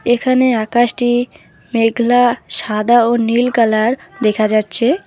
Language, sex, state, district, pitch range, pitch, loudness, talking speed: Bengali, female, West Bengal, Alipurduar, 225-245 Hz, 240 Hz, -14 LUFS, 105 wpm